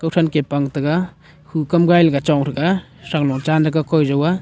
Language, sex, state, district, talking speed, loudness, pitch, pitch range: Wancho, male, Arunachal Pradesh, Longding, 230 wpm, -18 LUFS, 155 Hz, 145-165 Hz